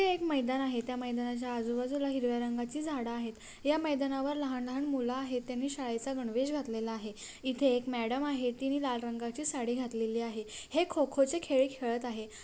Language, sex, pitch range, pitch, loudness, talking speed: Marathi, female, 235-275 Hz, 250 Hz, -34 LUFS, 180 wpm